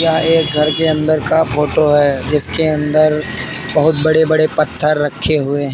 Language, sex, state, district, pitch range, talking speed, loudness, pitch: Hindi, male, Uttar Pradesh, Lalitpur, 145-155 Hz, 175 wpm, -14 LUFS, 155 Hz